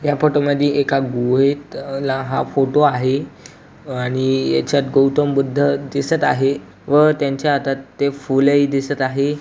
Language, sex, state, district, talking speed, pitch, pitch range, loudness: Marathi, male, Maharashtra, Aurangabad, 145 wpm, 140 Hz, 135-145 Hz, -18 LUFS